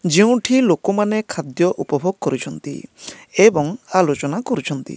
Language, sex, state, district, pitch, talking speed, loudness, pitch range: Odia, male, Odisha, Nuapada, 195 Hz, 95 wpm, -18 LUFS, 170-215 Hz